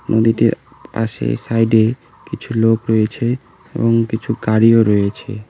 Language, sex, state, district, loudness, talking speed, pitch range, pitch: Bengali, male, West Bengal, Cooch Behar, -16 LUFS, 120 wpm, 110-115 Hz, 115 Hz